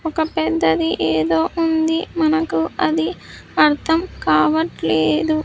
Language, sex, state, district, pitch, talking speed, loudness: Telugu, female, Andhra Pradesh, Sri Satya Sai, 160 Hz, 90 wpm, -18 LUFS